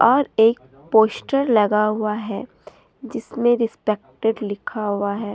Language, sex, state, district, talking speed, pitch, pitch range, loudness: Hindi, female, Jharkhand, Deoghar, 125 wpm, 220 Hz, 210-235 Hz, -20 LUFS